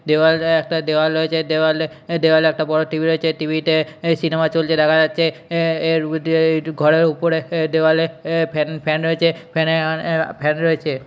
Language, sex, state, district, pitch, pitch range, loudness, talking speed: Bengali, male, West Bengal, Purulia, 160 Hz, 155-165 Hz, -18 LUFS, 175 wpm